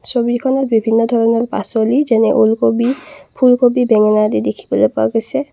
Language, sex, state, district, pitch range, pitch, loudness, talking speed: Assamese, female, Assam, Kamrup Metropolitan, 215-250 Hz, 230 Hz, -14 LUFS, 130 wpm